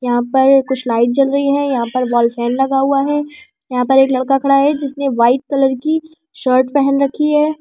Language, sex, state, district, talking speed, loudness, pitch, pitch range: Hindi, female, Delhi, New Delhi, 220 wpm, -15 LUFS, 275 Hz, 255-285 Hz